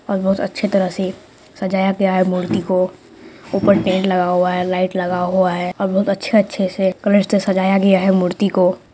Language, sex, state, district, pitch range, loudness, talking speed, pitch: Hindi, female, Bihar, Purnia, 185-195 Hz, -17 LUFS, 200 wpm, 190 Hz